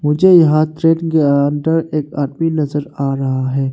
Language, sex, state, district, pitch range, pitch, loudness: Hindi, male, Arunachal Pradesh, Longding, 140-160 Hz, 150 Hz, -15 LUFS